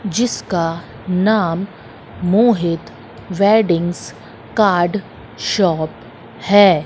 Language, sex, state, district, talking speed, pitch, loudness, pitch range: Hindi, female, Madhya Pradesh, Katni, 60 wpm, 175 Hz, -17 LUFS, 150-200 Hz